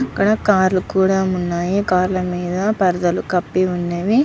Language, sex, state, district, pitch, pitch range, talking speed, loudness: Telugu, male, Andhra Pradesh, Visakhapatnam, 185 Hz, 180-195 Hz, 140 wpm, -18 LUFS